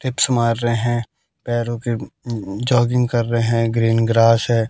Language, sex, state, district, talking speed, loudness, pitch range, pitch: Hindi, male, Haryana, Jhajjar, 190 wpm, -19 LUFS, 115-120 Hz, 120 Hz